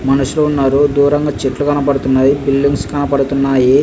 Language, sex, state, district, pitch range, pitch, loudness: Telugu, male, Andhra Pradesh, Visakhapatnam, 135-145 Hz, 140 Hz, -13 LUFS